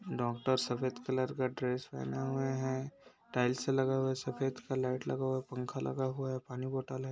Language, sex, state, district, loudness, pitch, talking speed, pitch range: Hindi, male, Chhattisgarh, Bastar, -36 LUFS, 130 Hz, 210 wpm, 125-135 Hz